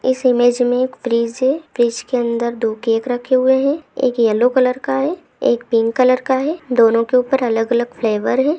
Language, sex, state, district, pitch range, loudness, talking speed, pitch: Hindi, female, Jharkhand, Sahebganj, 235-260 Hz, -17 LUFS, 215 wpm, 245 Hz